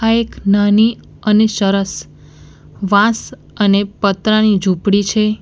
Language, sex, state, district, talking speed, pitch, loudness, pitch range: Gujarati, female, Gujarat, Valsad, 100 wpm, 205 Hz, -14 LUFS, 200-215 Hz